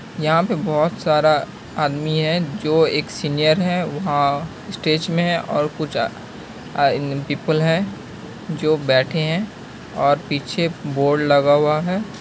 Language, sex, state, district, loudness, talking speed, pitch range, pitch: Hindi, male, Bihar, Kishanganj, -19 LUFS, 140 wpm, 145-170 Hz, 155 Hz